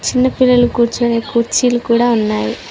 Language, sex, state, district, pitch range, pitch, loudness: Telugu, female, Telangana, Mahabubabad, 235-245 Hz, 235 Hz, -14 LUFS